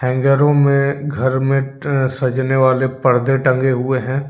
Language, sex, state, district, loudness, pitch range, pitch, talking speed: Hindi, male, Jharkhand, Deoghar, -16 LUFS, 130-140 Hz, 135 Hz, 140 wpm